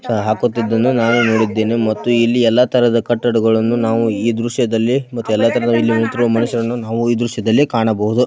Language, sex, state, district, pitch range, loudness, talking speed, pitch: Kannada, male, Karnataka, Belgaum, 115-120 Hz, -15 LUFS, 150 wpm, 115 Hz